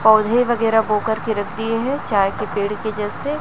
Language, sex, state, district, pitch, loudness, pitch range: Hindi, female, Chhattisgarh, Raipur, 220 Hz, -19 LUFS, 210-230 Hz